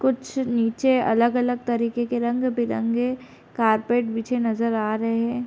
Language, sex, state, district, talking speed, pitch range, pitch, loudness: Hindi, female, Bihar, Gopalganj, 145 wpm, 230-245 Hz, 235 Hz, -23 LUFS